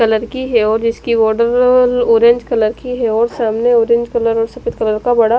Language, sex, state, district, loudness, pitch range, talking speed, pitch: Hindi, female, Punjab, Fazilka, -14 LUFS, 225-245 Hz, 200 wpm, 235 Hz